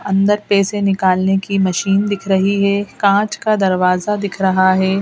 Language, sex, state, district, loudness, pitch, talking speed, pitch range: Hindi, female, Madhya Pradesh, Bhopal, -15 LUFS, 195 Hz, 165 wpm, 190-200 Hz